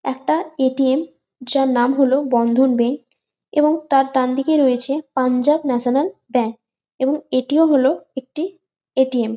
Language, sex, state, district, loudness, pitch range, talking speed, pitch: Bengali, female, West Bengal, Jalpaiguri, -18 LUFS, 250-290 Hz, 135 wpm, 265 Hz